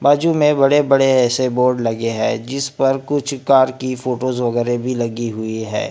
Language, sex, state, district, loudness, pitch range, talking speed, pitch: Hindi, male, Maharashtra, Gondia, -17 LUFS, 120-135 Hz, 195 wpm, 130 Hz